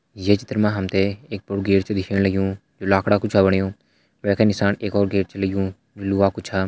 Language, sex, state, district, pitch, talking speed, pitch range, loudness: Hindi, male, Uttarakhand, Tehri Garhwal, 100 Hz, 260 wpm, 95-105 Hz, -21 LUFS